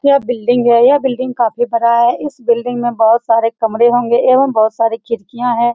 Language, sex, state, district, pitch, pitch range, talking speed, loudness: Hindi, female, Bihar, Saran, 240 Hz, 230-245 Hz, 210 wpm, -13 LUFS